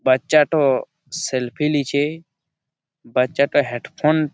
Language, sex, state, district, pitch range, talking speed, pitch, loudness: Bengali, male, West Bengal, Malda, 135-155 Hz, 95 wpm, 145 Hz, -20 LUFS